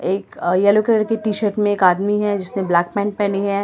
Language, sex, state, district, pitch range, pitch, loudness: Hindi, female, Delhi, New Delhi, 195-210 Hz, 205 Hz, -18 LUFS